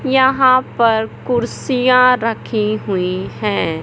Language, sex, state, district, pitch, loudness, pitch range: Hindi, male, Madhya Pradesh, Katni, 230 Hz, -15 LUFS, 210-255 Hz